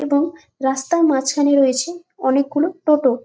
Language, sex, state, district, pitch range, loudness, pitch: Bengali, female, West Bengal, Jalpaiguri, 265-320 Hz, -18 LUFS, 285 Hz